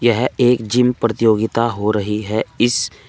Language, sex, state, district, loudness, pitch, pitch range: Hindi, male, Uttar Pradesh, Saharanpur, -17 LUFS, 115 Hz, 110-120 Hz